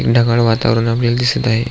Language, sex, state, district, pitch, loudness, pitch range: Marathi, male, Maharashtra, Aurangabad, 115 Hz, -14 LUFS, 115-120 Hz